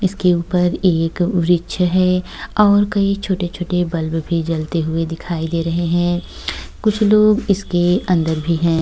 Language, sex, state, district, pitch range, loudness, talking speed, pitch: Hindi, female, Uttar Pradesh, Jyotiba Phule Nagar, 165-190 Hz, -17 LUFS, 150 wpm, 175 Hz